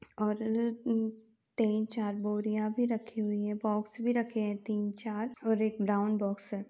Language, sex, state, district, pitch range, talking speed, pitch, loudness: Hindi, female, Uttar Pradesh, Varanasi, 210-225 Hz, 180 wpm, 215 Hz, -33 LUFS